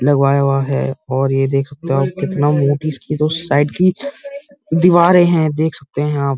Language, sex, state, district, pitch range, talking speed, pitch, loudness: Hindi, male, Uttar Pradesh, Muzaffarnagar, 140-170 Hz, 195 wpm, 145 Hz, -15 LUFS